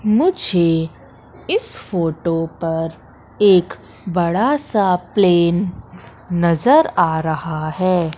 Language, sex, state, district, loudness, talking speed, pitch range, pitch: Hindi, female, Madhya Pradesh, Katni, -17 LUFS, 90 wpm, 165-200 Hz, 175 Hz